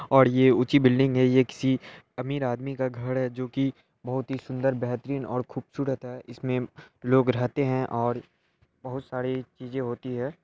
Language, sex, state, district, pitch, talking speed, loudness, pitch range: Hindi, male, Bihar, Araria, 130 Hz, 185 wpm, -26 LUFS, 125-130 Hz